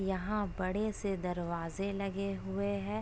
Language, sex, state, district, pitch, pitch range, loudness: Hindi, female, Uttar Pradesh, Etah, 195 Hz, 185-200 Hz, -36 LUFS